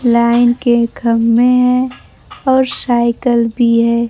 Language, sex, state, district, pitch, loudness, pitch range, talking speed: Hindi, female, Bihar, Kaimur, 235 Hz, -13 LUFS, 235-250 Hz, 115 wpm